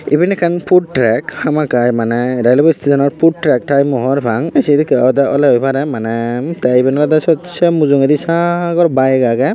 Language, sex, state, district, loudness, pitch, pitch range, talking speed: Chakma, male, Tripura, Unakoti, -13 LUFS, 140 Hz, 125-165 Hz, 195 wpm